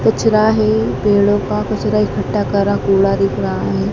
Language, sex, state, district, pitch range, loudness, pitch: Hindi, female, Madhya Pradesh, Dhar, 200-215 Hz, -15 LUFS, 205 Hz